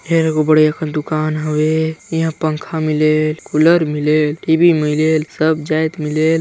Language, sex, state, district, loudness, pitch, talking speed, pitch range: Chhattisgarhi, male, Chhattisgarh, Sarguja, -16 LUFS, 155 Hz, 150 wpm, 155-160 Hz